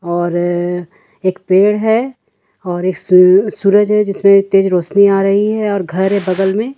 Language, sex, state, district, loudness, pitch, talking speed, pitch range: Hindi, female, Jharkhand, Ranchi, -13 LUFS, 195 Hz, 175 wpm, 180-205 Hz